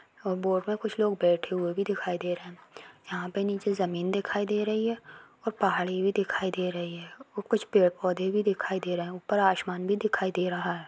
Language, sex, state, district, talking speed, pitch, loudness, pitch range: Hindi, female, Bihar, Purnia, 230 wpm, 190 Hz, -29 LUFS, 180-205 Hz